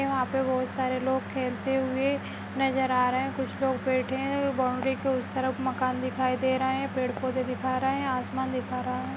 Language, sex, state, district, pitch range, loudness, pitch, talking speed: Hindi, female, Bihar, Madhepura, 255-265 Hz, -28 LUFS, 260 Hz, 215 wpm